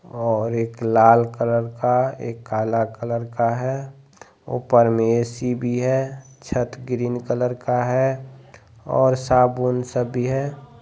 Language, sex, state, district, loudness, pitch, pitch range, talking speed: Hindi, male, Bihar, Jamui, -21 LUFS, 125 Hz, 115-130 Hz, 140 wpm